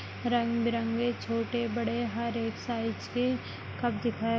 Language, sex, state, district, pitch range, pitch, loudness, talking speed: Kumaoni, female, Uttarakhand, Tehri Garhwal, 230-240 Hz, 235 Hz, -31 LUFS, 150 wpm